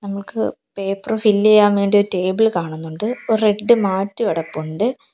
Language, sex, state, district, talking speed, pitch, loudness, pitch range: Malayalam, female, Kerala, Kollam, 140 wpm, 205 Hz, -18 LUFS, 190-220 Hz